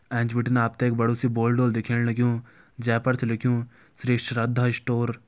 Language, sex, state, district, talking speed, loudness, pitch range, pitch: Garhwali, male, Uttarakhand, Uttarkashi, 205 wpm, -25 LUFS, 115-125 Hz, 120 Hz